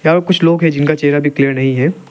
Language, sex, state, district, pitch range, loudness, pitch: Hindi, male, Arunachal Pradesh, Lower Dibang Valley, 140-165 Hz, -13 LUFS, 150 Hz